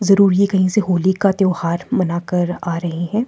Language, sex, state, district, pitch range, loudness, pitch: Hindi, female, Himachal Pradesh, Shimla, 175-195 Hz, -17 LUFS, 185 Hz